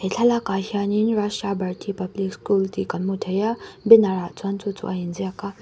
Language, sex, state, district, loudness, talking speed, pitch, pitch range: Mizo, female, Mizoram, Aizawl, -22 LUFS, 215 wpm, 200 Hz, 190-210 Hz